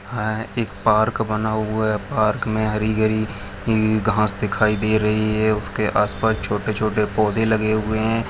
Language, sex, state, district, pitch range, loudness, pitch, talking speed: Hindi, male, Chhattisgarh, Raigarh, 105-110 Hz, -20 LUFS, 110 Hz, 175 wpm